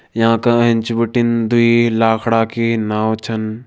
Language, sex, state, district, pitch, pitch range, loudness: Kumaoni, male, Uttarakhand, Tehri Garhwal, 115 Hz, 110-115 Hz, -15 LUFS